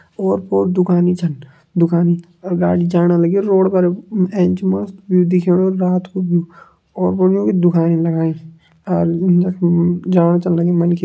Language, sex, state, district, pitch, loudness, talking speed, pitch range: Kumaoni, male, Uttarakhand, Tehri Garhwal, 175 Hz, -16 LUFS, 170 wpm, 170-185 Hz